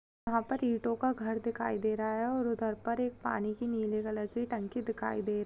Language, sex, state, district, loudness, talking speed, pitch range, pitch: Hindi, female, Chhattisgarh, Raigarh, -34 LUFS, 210 wpm, 215-235 Hz, 230 Hz